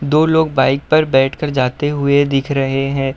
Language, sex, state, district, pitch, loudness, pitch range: Hindi, male, Uttar Pradesh, Budaun, 140 Hz, -15 LUFS, 135-150 Hz